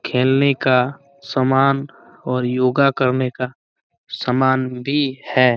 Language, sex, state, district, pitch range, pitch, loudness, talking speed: Hindi, male, Chhattisgarh, Bastar, 125-140 Hz, 130 Hz, -18 LUFS, 110 wpm